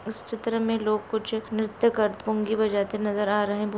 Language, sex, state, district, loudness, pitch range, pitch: Hindi, female, Jharkhand, Jamtara, -26 LUFS, 210-220 Hz, 215 Hz